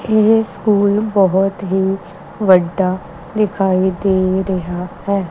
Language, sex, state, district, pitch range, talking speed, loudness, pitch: Punjabi, female, Punjab, Kapurthala, 185-200 Hz, 100 wpm, -16 LUFS, 190 Hz